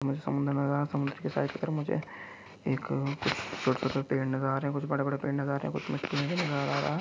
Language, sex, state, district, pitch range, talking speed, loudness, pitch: Hindi, male, Chhattisgarh, Korba, 135-140 Hz, 290 wpm, -31 LUFS, 140 Hz